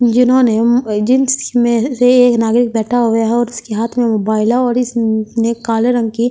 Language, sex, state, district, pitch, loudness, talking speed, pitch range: Hindi, female, Delhi, New Delhi, 235 Hz, -13 LUFS, 160 wpm, 225-245 Hz